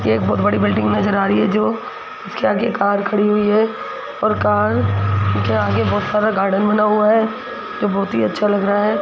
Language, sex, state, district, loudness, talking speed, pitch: Hindi, female, Rajasthan, Jaipur, -17 LUFS, 220 wpm, 200 Hz